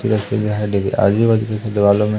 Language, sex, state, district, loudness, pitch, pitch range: Hindi, male, Madhya Pradesh, Umaria, -17 LUFS, 105 Hz, 100-110 Hz